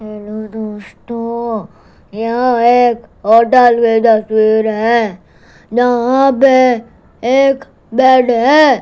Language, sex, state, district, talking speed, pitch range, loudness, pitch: Hindi, female, Gujarat, Gandhinagar, 90 wpm, 220-250 Hz, -12 LUFS, 235 Hz